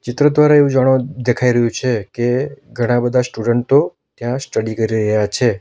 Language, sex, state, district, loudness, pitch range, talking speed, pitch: Gujarati, male, Gujarat, Valsad, -16 LUFS, 120-130 Hz, 170 wpm, 125 Hz